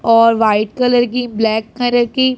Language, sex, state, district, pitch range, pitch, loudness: Hindi, female, Punjab, Pathankot, 220-245 Hz, 235 Hz, -14 LUFS